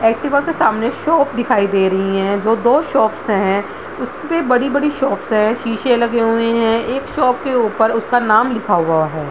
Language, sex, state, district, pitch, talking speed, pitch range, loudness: Hindi, female, Bihar, Madhepura, 230 Hz, 185 wpm, 210-255 Hz, -16 LUFS